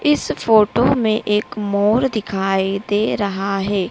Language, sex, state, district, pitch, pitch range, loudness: Hindi, female, Madhya Pradesh, Dhar, 210 Hz, 200-225 Hz, -18 LUFS